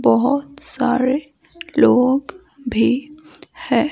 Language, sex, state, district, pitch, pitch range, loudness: Hindi, female, Himachal Pradesh, Shimla, 285 Hz, 255-315 Hz, -17 LUFS